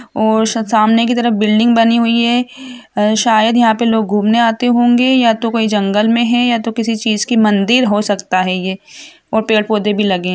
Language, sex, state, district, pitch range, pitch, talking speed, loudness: Hindi, female, Jharkhand, Jamtara, 215-235 Hz, 225 Hz, 220 wpm, -13 LUFS